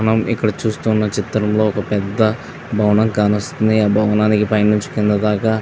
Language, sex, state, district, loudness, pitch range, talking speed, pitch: Telugu, male, Andhra Pradesh, Visakhapatnam, -17 LUFS, 105-110 Hz, 160 wpm, 105 Hz